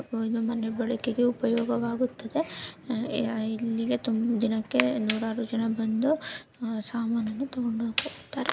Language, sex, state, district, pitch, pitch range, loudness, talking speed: Kannada, female, Karnataka, Gulbarga, 230 Hz, 225-240 Hz, -28 LUFS, 85 wpm